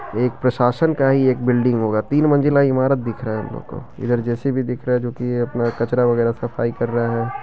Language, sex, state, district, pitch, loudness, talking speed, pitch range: Maithili, male, Bihar, Begusarai, 125 Hz, -19 LUFS, 225 wpm, 120-130 Hz